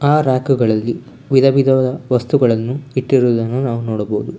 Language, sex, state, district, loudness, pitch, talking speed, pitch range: Kannada, male, Karnataka, Bangalore, -16 LUFS, 130 Hz, 125 wpm, 115-135 Hz